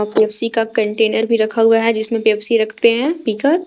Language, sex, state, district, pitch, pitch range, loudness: Hindi, female, Jharkhand, Garhwa, 225 Hz, 220-230 Hz, -16 LUFS